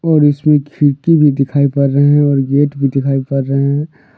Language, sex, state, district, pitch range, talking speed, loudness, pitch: Hindi, male, Jharkhand, Deoghar, 140-145 Hz, 215 wpm, -13 LUFS, 140 Hz